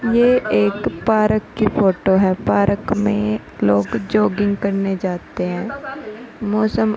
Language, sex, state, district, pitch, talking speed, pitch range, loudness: Hindi, female, Uttar Pradesh, Hamirpur, 210 Hz, 130 wpm, 195-220 Hz, -18 LUFS